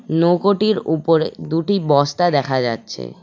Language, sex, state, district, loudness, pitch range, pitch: Bengali, male, West Bengal, Cooch Behar, -18 LUFS, 140-175 Hz, 160 Hz